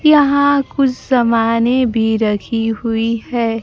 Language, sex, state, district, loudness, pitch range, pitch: Hindi, female, Bihar, Kaimur, -15 LUFS, 225-265 Hz, 230 Hz